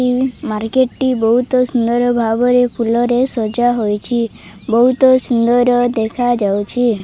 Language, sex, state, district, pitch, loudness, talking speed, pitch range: Odia, female, Odisha, Malkangiri, 240 Hz, -15 LUFS, 95 wpm, 225-250 Hz